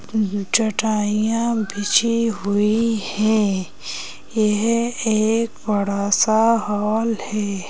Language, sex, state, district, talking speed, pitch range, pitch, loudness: Hindi, female, Madhya Pradesh, Bhopal, 80 wpm, 205-225 Hz, 215 Hz, -20 LUFS